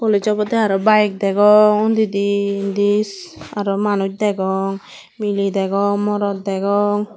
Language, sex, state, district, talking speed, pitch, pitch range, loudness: Chakma, female, Tripura, Dhalai, 115 wpm, 205 Hz, 200-210 Hz, -17 LUFS